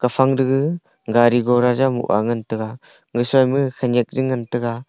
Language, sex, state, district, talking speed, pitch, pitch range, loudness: Wancho, male, Arunachal Pradesh, Longding, 185 wpm, 125 Hz, 120-130 Hz, -19 LUFS